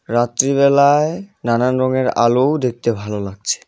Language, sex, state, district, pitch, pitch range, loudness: Bengali, male, West Bengal, Cooch Behar, 125 Hz, 120-140 Hz, -16 LUFS